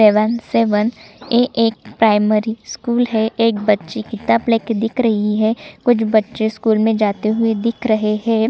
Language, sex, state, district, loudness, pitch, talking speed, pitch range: Hindi, female, Chhattisgarh, Sukma, -17 LUFS, 220 Hz, 170 wpm, 215-230 Hz